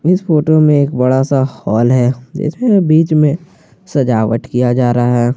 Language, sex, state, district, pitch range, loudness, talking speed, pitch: Hindi, male, Jharkhand, Garhwa, 125-155 Hz, -13 LUFS, 180 wpm, 135 Hz